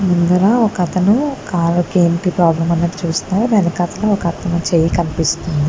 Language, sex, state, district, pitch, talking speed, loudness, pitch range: Telugu, female, Andhra Pradesh, Guntur, 175 Hz, 135 wpm, -15 LUFS, 170-195 Hz